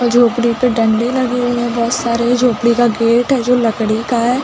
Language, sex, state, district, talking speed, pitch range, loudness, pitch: Hindi, female, Chhattisgarh, Rajnandgaon, 215 wpm, 235-245 Hz, -14 LUFS, 240 Hz